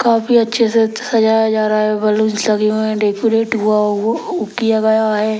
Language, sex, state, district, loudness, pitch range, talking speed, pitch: Hindi, male, Bihar, Sitamarhi, -15 LUFS, 215-225 Hz, 190 wpm, 220 Hz